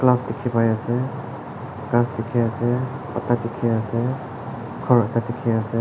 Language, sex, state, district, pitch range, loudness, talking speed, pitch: Nagamese, male, Nagaland, Kohima, 115-125 Hz, -23 LUFS, 145 wpm, 120 Hz